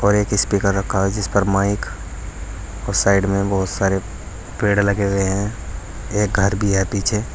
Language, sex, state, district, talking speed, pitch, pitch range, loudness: Hindi, male, Uttar Pradesh, Saharanpur, 190 wpm, 100 Hz, 95-100 Hz, -19 LUFS